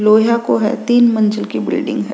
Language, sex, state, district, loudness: Rajasthani, female, Rajasthan, Nagaur, -15 LUFS